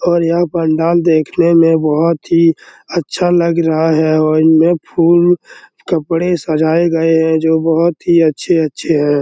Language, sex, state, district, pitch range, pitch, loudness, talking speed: Hindi, male, Bihar, Araria, 160-170 Hz, 165 Hz, -13 LUFS, 145 wpm